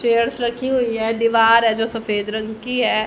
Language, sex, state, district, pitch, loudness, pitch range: Hindi, female, Haryana, Jhajjar, 230 Hz, -18 LUFS, 220-240 Hz